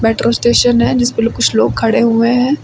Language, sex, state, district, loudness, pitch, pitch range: Hindi, female, Uttar Pradesh, Lucknow, -12 LUFS, 240 Hz, 230-245 Hz